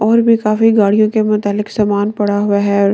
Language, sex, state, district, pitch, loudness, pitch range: Hindi, female, Delhi, New Delhi, 210 Hz, -13 LUFS, 205-215 Hz